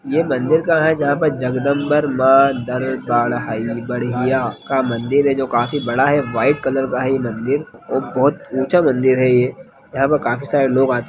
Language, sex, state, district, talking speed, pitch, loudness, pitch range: Hindi, male, Bihar, Lakhisarai, 195 wpm, 130 Hz, -17 LUFS, 125-140 Hz